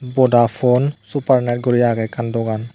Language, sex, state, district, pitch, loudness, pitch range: Chakma, male, Tripura, Dhalai, 120 Hz, -17 LUFS, 115-130 Hz